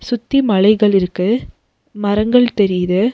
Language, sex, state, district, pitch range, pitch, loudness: Tamil, female, Tamil Nadu, Nilgiris, 195-240 Hz, 210 Hz, -15 LUFS